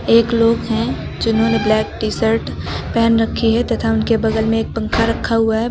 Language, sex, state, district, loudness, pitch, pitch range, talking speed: Hindi, female, Uttar Pradesh, Lucknow, -17 LUFS, 225 Hz, 225-230 Hz, 190 wpm